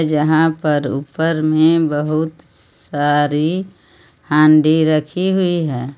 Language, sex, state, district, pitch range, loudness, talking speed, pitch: Hindi, female, Jharkhand, Palamu, 145-160 Hz, -16 LUFS, 100 wpm, 155 Hz